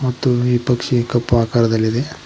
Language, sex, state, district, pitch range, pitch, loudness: Kannada, male, Karnataka, Koppal, 115-125 Hz, 120 Hz, -17 LUFS